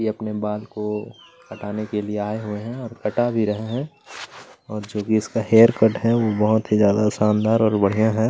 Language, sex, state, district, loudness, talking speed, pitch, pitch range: Hindi, male, Chhattisgarh, Kabirdham, -21 LUFS, 210 wpm, 110 Hz, 105-115 Hz